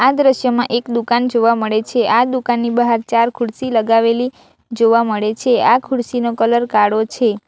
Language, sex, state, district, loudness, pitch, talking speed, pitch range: Gujarati, female, Gujarat, Valsad, -15 LUFS, 235 Hz, 175 wpm, 225-245 Hz